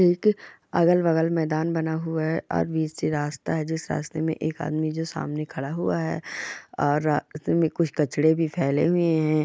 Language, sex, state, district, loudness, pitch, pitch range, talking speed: Hindi, female, Bihar, Purnia, -25 LUFS, 160 Hz, 150-165 Hz, 185 wpm